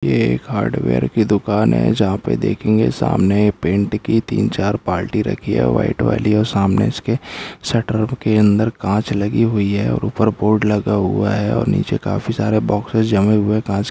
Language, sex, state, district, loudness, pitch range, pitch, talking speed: Hindi, male, Uttar Pradesh, Hamirpur, -17 LUFS, 100-110 Hz, 105 Hz, 195 wpm